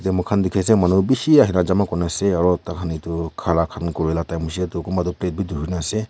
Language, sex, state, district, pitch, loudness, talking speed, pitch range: Nagamese, male, Nagaland, Kohima, 90 Hz, -20 LUFS, 275 wpm, 85-95 Hz